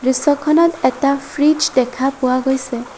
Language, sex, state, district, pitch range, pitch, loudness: Assamese, female, Assam, Sonitpur, 255-290 Hz, 270 Hz, -16 LUFS